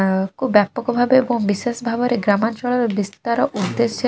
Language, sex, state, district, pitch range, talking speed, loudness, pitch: Odia, female, Odisha, Khordha, 205-245 Hz, 160 wpm, -19 LUFS, 235 Hz